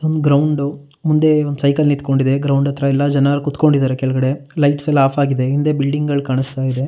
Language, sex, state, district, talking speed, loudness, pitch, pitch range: Kannada, male, Karnataka, Shimoga, 175 wpm, -16 LUFS, 140 Hz, 135-145 Hz